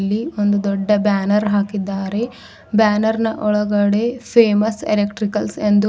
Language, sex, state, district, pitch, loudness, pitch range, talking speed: Kannada, female, Karnataka, Bidar, 210 Hz, -18 LUFS, 205-220 Hz, 120 wpm